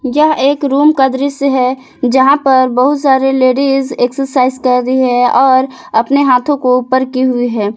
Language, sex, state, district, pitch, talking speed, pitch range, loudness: Hindi, female, Jharkhand, Palamu, 260 Hz, 175 wpm, 255-275 Hz, -11 LUFS